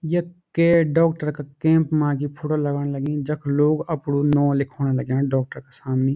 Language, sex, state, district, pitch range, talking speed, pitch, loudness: Garhwali, male, Uttarakhand, Uttarkashi, 140-160 Hz, 185 wpm, 145 Hz, -21 LUFS